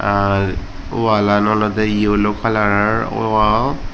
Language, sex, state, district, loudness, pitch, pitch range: Chakma, male, Tripura, Dhalai, -16 LUFS, 105 Hz, 100-110 Hz